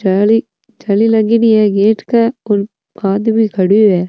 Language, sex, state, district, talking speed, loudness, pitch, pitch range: Rajasthani, female, Rajasthan, Nagaur, 145 wpm, -12 LUFS, 215 Hz, 200-225 Hz